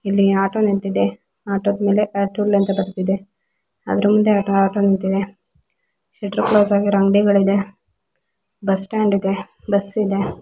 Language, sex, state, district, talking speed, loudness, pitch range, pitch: Kannada, female, Karnataka, Raichur, 125 wpm, -18 LUFS, 195-205 Hz, 200 Hz